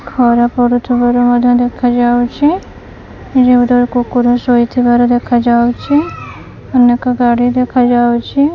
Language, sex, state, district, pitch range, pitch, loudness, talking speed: Odia, female, Odisha, Khordha, 240-250 Hz, 245 Hz, -11 LUFS, 85 wpm